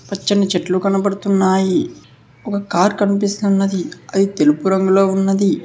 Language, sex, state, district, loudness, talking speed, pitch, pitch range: Telugu, male, Telangana, Hyderabad, -16 LUFS, 105 wpm, 195 Hz, 190-200 Hz